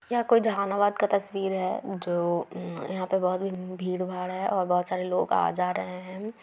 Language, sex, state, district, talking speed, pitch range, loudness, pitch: Hindi, female, Bihar, Gaya, 195 wpm, 180-200 Hz, -28 LUFS, 185 Hz